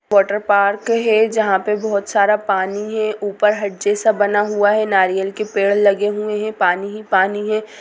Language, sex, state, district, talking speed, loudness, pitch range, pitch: Hindi, female, Chhattisgarh, Sukma, 190 wpm, -17 LUFS, 200-215 Hz, 205 Hz